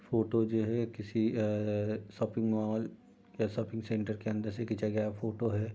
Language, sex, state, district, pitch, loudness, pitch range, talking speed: Hindi, male, Uttar Pradesh, Budaun, 110 Hz, -34 LUFS, 105-115 Hz, 175 wpm